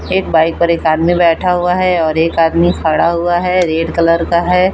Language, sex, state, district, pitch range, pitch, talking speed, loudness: Hindi, female, Jharkhand, Palamu, 165-180 Hz, 170 Hz, 225 wpm, -13 LUFS